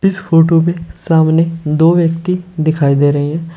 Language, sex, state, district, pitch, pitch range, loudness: Hindi, male, Uttar Pradesh, Shamli, 165 Hz, 155-170 Hz, -13 LUFS